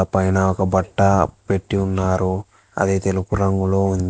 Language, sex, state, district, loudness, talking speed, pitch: Telugu, male, Telangana, Hyderabad, -19 LUFS, 130 wpm, 95 Hz